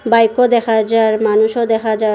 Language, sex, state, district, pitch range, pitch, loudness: Bengali, female, Assam, Hailakandi, 220-230 Hz, 225 Hz, -14 LUFS